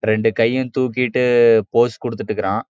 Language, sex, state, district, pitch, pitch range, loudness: Tamil, male, Karnataka, Chamarajanagar, 120 Hz, 115-125 Hz, -17 LUFS